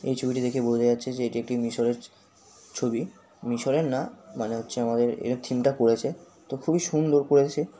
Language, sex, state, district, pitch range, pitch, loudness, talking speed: Bengali, male, West Bengal, Kolkata, 120-135 Hz, 125 Hz, -26 LUFS, 185 wpm